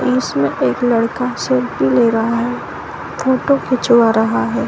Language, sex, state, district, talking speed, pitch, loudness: Hindi, female, Bihar, Saran, 140 wpm, 230 Hz, -16 LUFS